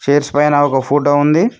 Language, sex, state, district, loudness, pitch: Telugu, male, Telangana, Mahabubabad, -13 LUFS, 145 Hz